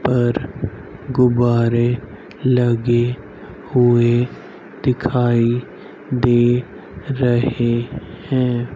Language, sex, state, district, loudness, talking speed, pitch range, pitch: Hindi, male, Haryana, Rohtak, -18 LUFS, 55 wpm, 120-125 Hz, 120 Hz